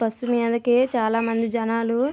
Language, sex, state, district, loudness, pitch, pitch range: Telugu, female, Andhra Pradesh, Visakhapatnam, -22 LUFS, 230 Hz, 230-240 Hz